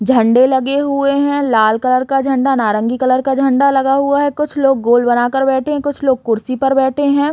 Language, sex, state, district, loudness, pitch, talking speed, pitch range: Hindi, female, Chhattisgarh, Raigarh, -14 LUFS, 270 Hz, 230 wpm, 255-280 Hz